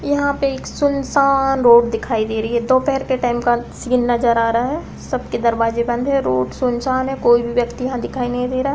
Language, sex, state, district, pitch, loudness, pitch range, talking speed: Hindi, female, Uttar Pradesh, Deoria, 245 Hz, -18 LUFS, 235-270 Hz, 235 wpm